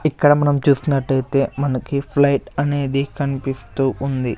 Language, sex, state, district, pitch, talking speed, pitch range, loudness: Telugu, male, Andhra Pradesh, Sri Satya Sai, 140 Hz, 110 wpm, 135-140 Hz, -19 LUFS